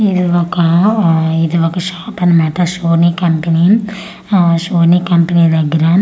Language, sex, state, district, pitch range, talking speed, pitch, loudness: Telugu, female, Andhra Pradesh, Manyam, 165-180 Hz, 140 wpm, 170 Hz, -12 LUFS